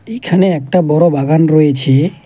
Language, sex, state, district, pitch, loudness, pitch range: Bengali, male, West Bengal, Alipurduar, 160 Hz, -12 LUFS, 145-180 Hz